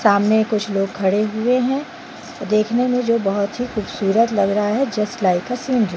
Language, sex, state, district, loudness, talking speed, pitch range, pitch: Hindi, female, Bihar, Jamui, -19 LUFS, 200 wpm, 200-245 Hz, 215 Hz